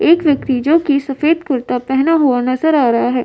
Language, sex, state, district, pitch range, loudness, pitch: Hindi, female, Uttar Pradesh, Varanasi, 250-315 Hz, -14 LUFS, 275 Hz